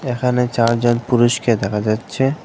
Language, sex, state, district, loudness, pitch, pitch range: Bengali, male, Assam, Hailakandi, -17 LUFS, 120 Hz, 115-125 Hz